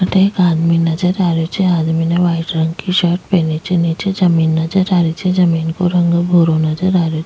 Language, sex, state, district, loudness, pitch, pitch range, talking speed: Rajasthani, female, Rajasthan, Nagaur, -14 LUFS, 175 Hz, 165-180 Hz, 240 wpm